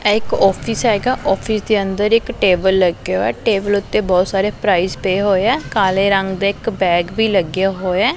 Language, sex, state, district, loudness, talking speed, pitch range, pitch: Punjabi, female, Punjab, Pathankot, -16 LUFS, 200 wpm, 190-215 Hz, 195 Hz